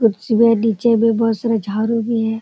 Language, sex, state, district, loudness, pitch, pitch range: Hindi, female, Bihar, Sitamarhi, -17 LUFS, 225 Hz, 220-230 Hz